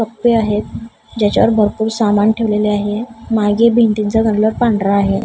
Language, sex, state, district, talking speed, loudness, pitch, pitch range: Marathi, female, Maharashtra, Gondia, 135 wpm, -14 LUFS, 215 Hz, 210-225 Hz